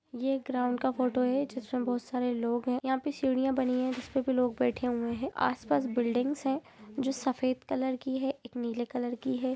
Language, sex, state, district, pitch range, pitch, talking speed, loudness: Hindi, female, Jharkhand, Jamtara, 245-265 Hz, 255 Hz, 225 wpm, -31 LUFS